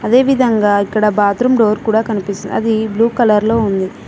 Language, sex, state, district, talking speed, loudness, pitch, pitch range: Telugu, female, Telangana, Mahabubabad, 160 wpm, -14 LUFS, 220 Hz, 205-230 Hz